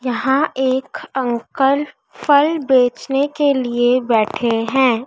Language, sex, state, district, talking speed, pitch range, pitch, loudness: Hindi, female, Madhya Pradesh, Dhar, 105 wpm, 240-280 Hz, 260 Hz, -17 LUFS